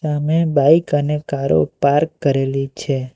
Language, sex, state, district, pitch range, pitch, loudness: Gujarati, male, Gujarat, Valsad, 135-155 Hz, 145 Hz, -17 LUFS